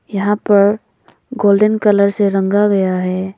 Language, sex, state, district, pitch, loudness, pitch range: Hindi, female, Arunachal Pradesh, Lower Dibang Valley, 200 Hz, -14 LUFS, 195-210 Hz